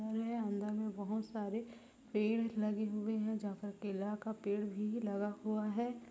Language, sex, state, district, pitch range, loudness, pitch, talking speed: Hindi, female, Chhattisgarh, Raigarh, 205-225 Hz, -39 LUFS, 215 Hz, 175 wpm